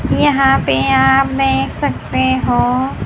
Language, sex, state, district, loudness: Hindi, female, Haryana, Charkhi Dadri, -14 LUFS